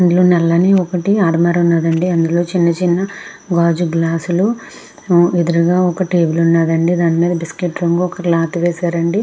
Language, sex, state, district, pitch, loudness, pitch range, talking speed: Telugu, female, Andhra Pradesh, Krishna, 175 Hz, -15 LUFS, 170-180 Hz, 150 wpm